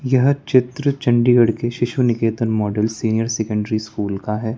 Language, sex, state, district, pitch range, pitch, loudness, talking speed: Hindi, male, Chandigarh, Chandigarh, 110-125 Hz, 115 Hz, -19 LUFS, 155 wpm